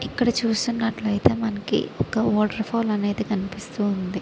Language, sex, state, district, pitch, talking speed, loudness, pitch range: Telugu, female, Andhra Pradesh, Srikakulam, 215 Hz, 115 wpm, -24 LUFS, 205-225 Hz